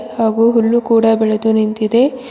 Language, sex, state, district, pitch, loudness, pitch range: Kannada, female, Karnataka, Bidar, 225 Hz, -14 LUFS, 220-235 Hz